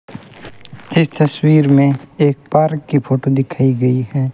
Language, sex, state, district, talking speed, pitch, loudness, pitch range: Hindi, male, Rajasthan, Bikaner, 140 wpm, 140 Hz, -15 LUFS, 135-155 Hz